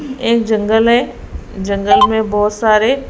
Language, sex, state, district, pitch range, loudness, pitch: Hindi, female, Haryana, Rohtak, 210-240 Hz, -13 LUFS, 220 Hz